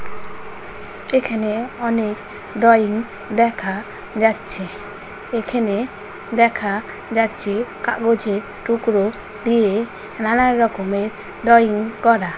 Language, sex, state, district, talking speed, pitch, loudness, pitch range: Bengali, female, West Bengal, North 24 Parganas, 75 wpm, 215 Hz, -19 LUFS, 205-230 Hz